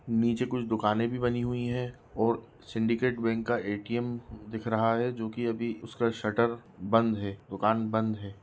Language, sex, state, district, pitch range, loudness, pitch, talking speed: Hindi, male, Bihar, Jahanabad, 110-120 Hz, -30 LUFS, 115 Hz, 180 wpm